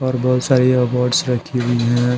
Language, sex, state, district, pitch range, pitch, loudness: Hindi, male, Bihar, Patna, 125-130 Hz, 125 Hz, -17 LUFS